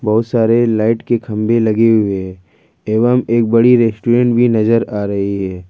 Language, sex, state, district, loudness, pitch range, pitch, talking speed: Hindi, male, Jharkhand, Ranchi, -14 LUFS, 105-115 Hz, 115 Hz, 180 wpm